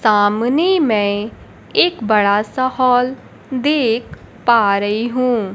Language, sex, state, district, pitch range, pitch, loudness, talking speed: Hindi, male, Bihar, Kaimur, 210-255 Hz, 235 Hz, -16 LUFS, 110 wpm